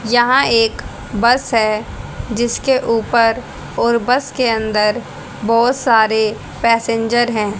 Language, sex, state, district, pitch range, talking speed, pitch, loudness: Hindi, female, Haryana, Charkhi Dadri, 220-240 Hz, 110 wpm, 230 Hz, -15 LUFS